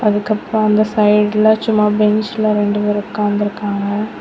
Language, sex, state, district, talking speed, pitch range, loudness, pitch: Tamil, female, Tamil Nadu, Kanyakumari, 115 wpm, 205-215 Hz, -15 LUFS, 210 Hz